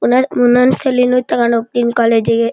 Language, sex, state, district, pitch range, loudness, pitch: Kannada, male, Karnataka, Shimoga, 230-250 Hz, -13 LUFS, 245 Hz